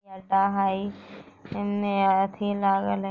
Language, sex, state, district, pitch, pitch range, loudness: Bajjika, female, Bihar, Vaishali, 195 Hz, 195-200 Hz, -25 LUFS